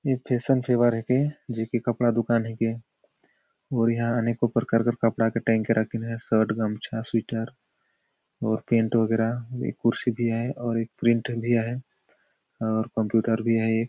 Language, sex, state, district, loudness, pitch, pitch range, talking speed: Sadri, male, Chhattisgarh, Jashpur, -25 LUFS, 115 Hz, 115-120 Hz, 175 wpm